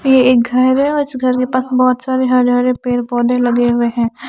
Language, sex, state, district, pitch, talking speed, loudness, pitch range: Hindi, female, Chandigarh, Chandigarh, 250 Hz, 265 wpm, -14 LUFS, 245-255 Hz